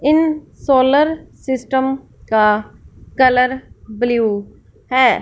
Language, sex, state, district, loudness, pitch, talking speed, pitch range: Hindi, female, Punjab, Fazilka, -16 LUFS, 260 Hz, 80 wpm, 235-270 Hz